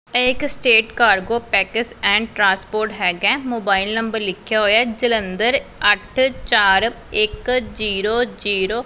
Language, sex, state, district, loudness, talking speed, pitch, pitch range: Punjabi, female, Punjab, Pathankot, -17 LUFS, 120 wpm, 225 Hz, 205-245 Hz